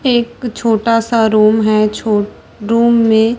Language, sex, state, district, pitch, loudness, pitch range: Hindi, female, Chhattisgarh, Raipur, 225 Hz, -13 LUFS, 215-235 Hz